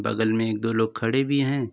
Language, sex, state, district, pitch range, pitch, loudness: Hindi, male, Uttar Pradesh, Varanasi, 110-135 Hz, 115 Hz, -24 LUFS